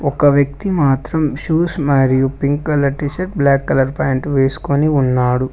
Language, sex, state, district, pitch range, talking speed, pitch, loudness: Telugu, male, Telangana, Mahabubabad, 135-150 Hz, 150 wpm, 140 Hz, -16 LUFS